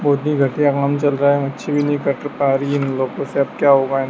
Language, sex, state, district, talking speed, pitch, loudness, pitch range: Hindi, male, Madhya Pradesh, Dhar, 310 wpm, 140 Hz, -18 LUFS, 135-145 Hz